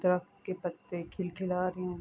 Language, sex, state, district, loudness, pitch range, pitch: Urdu, female, Andhra Pradesh, Anantapur, -35 LUFS, 175-185 Hz, 180 Hz